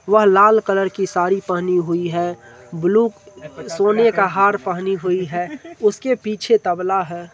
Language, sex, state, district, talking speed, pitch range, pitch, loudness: Hindi, male, Bihar, Supaul, 155 wpm, 175-210 Hz, 195 Hz, -18 LUFS